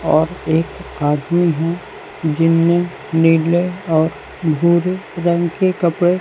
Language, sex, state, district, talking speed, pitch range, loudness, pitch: Hindi, male, Chhattisgarh, Raipur, 105 wpm, 160-175 Hz, -17 LUFS, 170 Hz